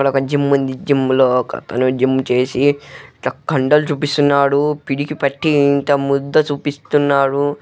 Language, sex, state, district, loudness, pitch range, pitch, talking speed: Telugu, male, Telangana, Karimnagar, -16 LUFS, 135-145 Hz, 140 Hz, 120 wpm